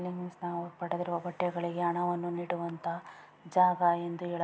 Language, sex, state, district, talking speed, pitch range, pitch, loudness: Kannada, female, Karnataka, Bijapur, 160 wpm, 170-175 Hz, 175 Hz, -32 LUFS